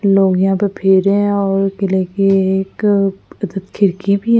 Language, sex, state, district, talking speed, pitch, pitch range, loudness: Hindi, female, Delhi, New Delhi, 175 wpm, 195 Hz, 190-200 Hz, -15 LUFS